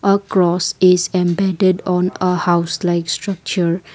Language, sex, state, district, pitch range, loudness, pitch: English, female, Assam, Kamrup Metropolitan, 175-185 Hz, -16 LUFS, 180 Hz